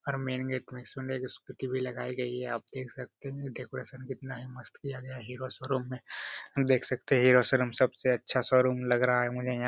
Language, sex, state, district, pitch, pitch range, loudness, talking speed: Hindi, male, Bihar, Araria, 130 Hz, 125-130 Hz, -31 LUFS, 215 wpm